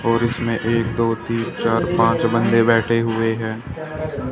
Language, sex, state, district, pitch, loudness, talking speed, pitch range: Hindi, male, Haryana, Jhajjar, 115 Hz, -19 LUFS, 155 wpm, 115-120 Hz